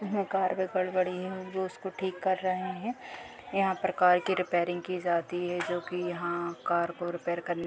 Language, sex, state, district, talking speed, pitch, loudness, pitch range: Hindi, female, Uttar Pradesh, Deoria, 210 wpm, 185 Hz, -31 LUFS, 175-190 Hz